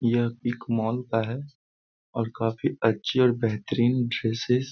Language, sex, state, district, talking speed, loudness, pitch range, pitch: Hindi, male, Bihar, Jamui, 155 wpm, -26 LUFS, 115-125 Hz, 115 Hz